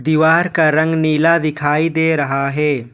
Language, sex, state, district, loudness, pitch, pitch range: Hindi, male, Jharkhand, Ranchi, -15 LUFS, 155 Hz, 145-160 Hz